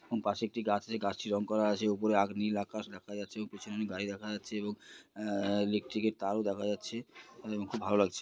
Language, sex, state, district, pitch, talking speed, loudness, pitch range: Bengali, male, West Bengal, Purulia, 105 Hz, 225 wpm, -35 LUFS, 100-110 Hz